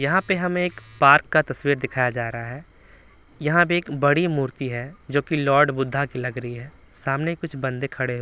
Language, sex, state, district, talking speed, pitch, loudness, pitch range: Hindi, male, Bihar, Patna, 210 wpm, 140 Hz, -22 LUFS, 125-155 Hz